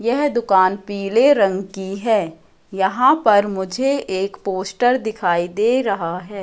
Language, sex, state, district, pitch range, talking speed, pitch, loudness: Hindi, female, Madhya Pradesh, Katni, 190-235 Hz, 140 wpm, 200 Hz, -18 LUFS